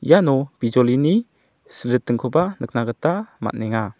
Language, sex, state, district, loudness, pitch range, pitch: Garo, male, Meghalaya, South Garo Hills, -20 LUFS, 115-165 Hz, 125 Hz